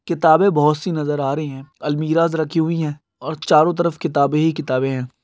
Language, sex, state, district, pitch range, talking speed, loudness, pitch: Hindi, male, Andhra Pradesh, Guntur, 145-165 Hz, 205 wpm, -18 LUFS, 155 Hz